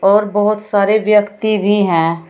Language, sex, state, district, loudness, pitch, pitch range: Hindi, female, Uttar Pradesh, Shamli, -14 LUFS, 205 Hz, 200-210 Hz